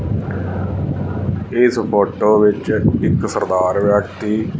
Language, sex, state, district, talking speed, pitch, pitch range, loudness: Punjabi, male, Punjab, Fazilka, 80 wpm, 105 Hz, 100-110 Hz, -17 LUFS